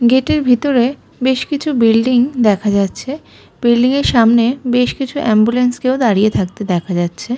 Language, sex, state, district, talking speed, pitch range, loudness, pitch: Bengali, female, West Bengal, Malda, 140 wpm, 220-260 Hz, -14 LUFS, 245 Hz